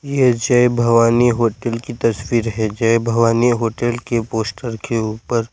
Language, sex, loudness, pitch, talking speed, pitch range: Hindi, male, -17 LUFS, 115 Hz, 150 wpm, 115-120 Hz